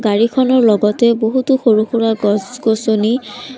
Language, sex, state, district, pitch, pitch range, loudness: Assamese, female, Assam, Sonitpur, 225 Hz, 215-245 Hz, -14 LUFS